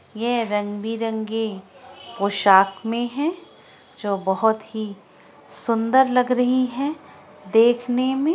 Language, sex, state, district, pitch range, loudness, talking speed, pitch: Hindi, female, Bihar, Araria, 205-250 Hz, -21 LUFS, 100 wpm, 225 Hz